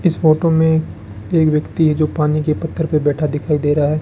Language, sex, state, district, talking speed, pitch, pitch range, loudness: Hindi, male, Rajasthan, Bikaner, 240 wpm, 150 Hz, 150-160 Hz, -16 LUFS